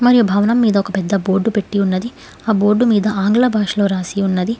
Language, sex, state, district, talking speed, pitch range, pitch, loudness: Telugu, female, Telangana, Hyderabad, 195 wpm, 195-225 Hz, 205 Hz, -16 LUFS